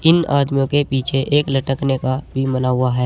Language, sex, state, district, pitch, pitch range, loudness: Hindi, male, Uttar Pradesh, Saharanpur, 135 Hz, 130-140 Hz, -18 LUFS